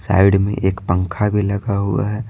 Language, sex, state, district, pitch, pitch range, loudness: Hindi, male, Bihar, Patna, 100 Hz, 95-105 Hz, -18 LUFS